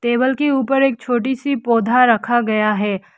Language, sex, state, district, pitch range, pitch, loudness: Hindi, female, Arunachal Pradesh, Lower Dibang Valley, 225-265 Hz, 240 Hz, -17 LUFS